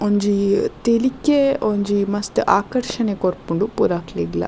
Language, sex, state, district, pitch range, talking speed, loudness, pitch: Tulu, female, Karnataka, Dakshina Kannada, 195-235 Hz, 95 wpm, -19 LUFS, 205 Hz